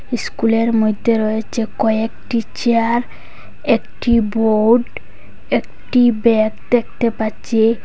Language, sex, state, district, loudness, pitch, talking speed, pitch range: Bengali, female, Assam, Hailakandi, -17 LUFS, 225 Hz, 85 wpm, 220-235 Hz